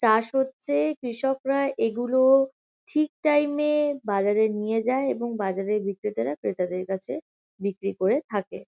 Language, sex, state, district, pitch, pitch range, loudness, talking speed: Bengali, female, West Bengal, Kolkata, 235 Hz, 200-275 Hz, -25 LUFS, 125 wpm